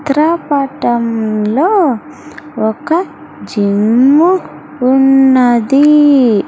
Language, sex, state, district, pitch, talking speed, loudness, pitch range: Telugu, female, Andhra Pradesh, Sri Satya Sai, 270 Hz, 45 wpm, -11 LUFS, 230-300 Hz